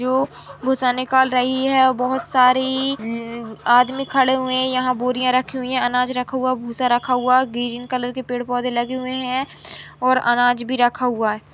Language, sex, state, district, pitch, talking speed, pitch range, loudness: Hindi, female, Uttarakhand, Tehri Garhwal, 255 Hz, 210 wpm, 245-260 Hz, -19 LUFS